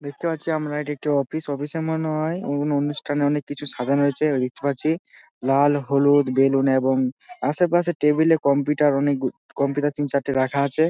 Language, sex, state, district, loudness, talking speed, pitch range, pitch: Bengali, male, West Bengal, Dakshin Dinajpur, -22 LUFS, 175 wpm, 140-155 Hz, 145 Hz